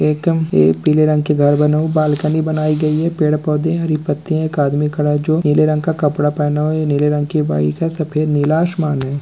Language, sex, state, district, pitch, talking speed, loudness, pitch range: Hindi, male, Bihar, Araria, 150 Hz, 235 wpm, -16 LUFS, 150-155 Hz